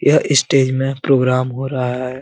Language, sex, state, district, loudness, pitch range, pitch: Hindi, male, Bihar, Jamui, -16 LUFS, 125-135 Hz, 130 Hz